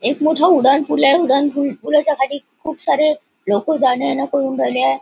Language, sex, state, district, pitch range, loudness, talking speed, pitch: Marathi, female, Maharashtra, Nagpur, 265-305 Hz, -16 LUFS, 215 wpm, 280 Hz